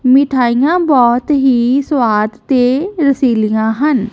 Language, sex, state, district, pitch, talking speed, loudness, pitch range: Punjabi, female, Punjab, Kapurthala, 255 Hz, 100 wpm, -12 LUFS, 235-280 Hz